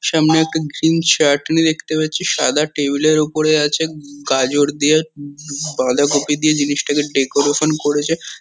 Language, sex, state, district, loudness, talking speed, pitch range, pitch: Bengali, male, West Bengal, Kolkata, -16 LUFS, 135 wpm, 145-155 Hz, 150 Hz